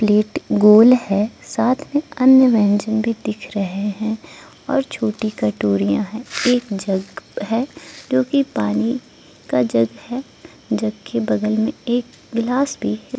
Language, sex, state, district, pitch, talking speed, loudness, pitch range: Hindi, female, Arunachal Pradesh, Lower Dibang Valley, 215 Hz, 145 wpm, -19 LUFS, 185-250 Hz